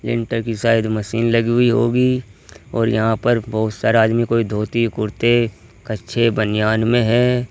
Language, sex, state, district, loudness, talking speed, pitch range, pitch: Hindi, male, Uttar Pradesh, Saharanpur, -18 LUFS, 150 wpm, 110-120 Hz, 115 Hz